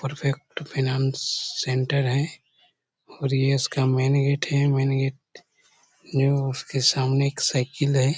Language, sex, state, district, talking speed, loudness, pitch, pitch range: Hindi, male, Chhattisgarh, Korba, 130 wpm, -23 LUFS, 135 Hz, 135-140 Hz